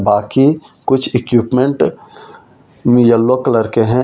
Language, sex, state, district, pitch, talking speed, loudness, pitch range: Hindi, male, Delhi, New Delhi, 125 Hz, 165 wpm, -13 LUFS, 115-130 Hz